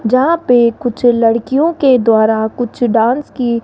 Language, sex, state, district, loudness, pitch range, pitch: Hindi, female, Rajasthan, Jaipur, -13 LUFS, 230-260 Hz, 240 Hz